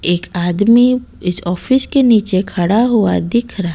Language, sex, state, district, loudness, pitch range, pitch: Hindi, female, Odisha, Malkangiri, -13 LUFS, 175-240 Hz, 200 Hz